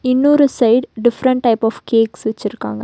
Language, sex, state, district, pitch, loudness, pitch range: Tamil, female, Tamil Nadu, Nilgiris, 235 Hz, -15 LUFS, 220-255 Hz